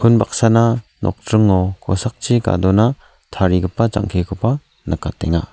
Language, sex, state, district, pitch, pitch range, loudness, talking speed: Garo, male, Meghalaya, South Garo Hills, 105 Hz, 95-115 Hz, -17 LUFS, 75 wpm